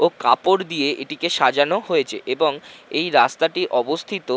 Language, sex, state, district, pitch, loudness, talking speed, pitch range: Bengali, male, West Bengal, North 24 Parganas, 170 Hz, -20 LUFS, 135 wpm, 150-200 Hz